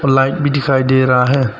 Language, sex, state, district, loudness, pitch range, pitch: Hindi, male, Arunachal Pradesh, Papum Pare, -13 LUFS, 130-140 Hz, 135 Hz